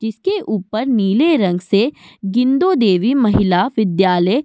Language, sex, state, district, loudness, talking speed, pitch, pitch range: Hindi, female, Uttar Pradesh, Budaun, -16 LUFS, 135 wpm, 220 Hz, 195-260 Hz